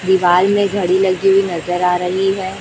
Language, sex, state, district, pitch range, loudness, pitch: Hindi, female, Chhattisgarh, Raipur, 180-195 Hz, -15 LUFS, 190 Hz